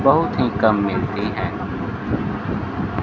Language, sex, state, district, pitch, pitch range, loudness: Hindi, male, Bihar, Kaimur, 105 Hz, 100-115 Hz, -21 LUFS